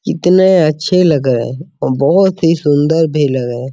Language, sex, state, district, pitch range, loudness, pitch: Hindi, male, Bihar, Araria, 135-175 Hz, -12 LUFS, 155 Hz